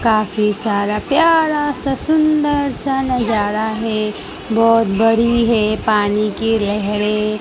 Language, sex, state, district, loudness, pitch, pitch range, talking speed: Hindi, female, Gujarat, Gandhinagar, -16 LUFS, 225 Hz, 210-270 Hz, 115 wpm